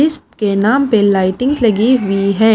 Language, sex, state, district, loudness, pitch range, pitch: Hindi, female, Himachal Pradesh, Shimla, -13 LUFS, 200-260 Hz, 220 Hz